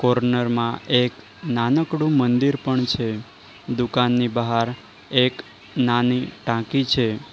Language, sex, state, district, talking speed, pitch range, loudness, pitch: Gujarati, male, Gujarat, Valsad, 105 wpm, 120-130 Hz, -21 LUFS, 125 Hz